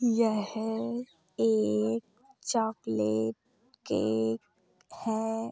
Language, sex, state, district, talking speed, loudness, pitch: Hindi, female, Uttar Pradesh, Hamirpur, 55 wpm, -30 LUFS, 215 Hz